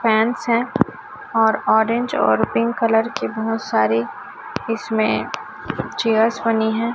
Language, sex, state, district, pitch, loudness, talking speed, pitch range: Hindi, female, Chhattisgarh, Raipur, 225 Hz, -20 LUFS, 120 wpm, 220-235 Hz